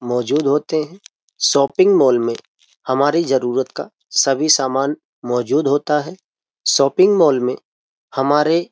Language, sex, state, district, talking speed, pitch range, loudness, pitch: Hindi, male, Uttar Pradesh, Jyotiba Phule Nagar, 130 wpm, 130-155 Hz, -17 LUFS, 140 Hz